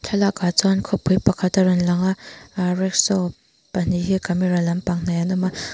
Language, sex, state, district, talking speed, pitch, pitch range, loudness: Mizo, female, Mizoram, Aizawl, 200 wpm, 185 Hz, 175-190 Hz, -20 LUFS